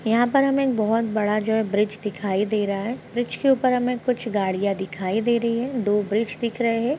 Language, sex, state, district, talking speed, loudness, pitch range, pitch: Hindi, female, Uttar Pradesh, Etah, 240 wpm, -23 LUFS, 210-245 Hz, 225 Hz